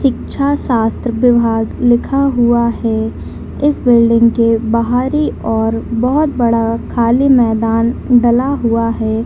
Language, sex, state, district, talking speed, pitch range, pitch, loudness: Hindi, female, Bihar, Madhepura, 125 wpm, 230-255 Hz, 235 Hz, -13 LUFS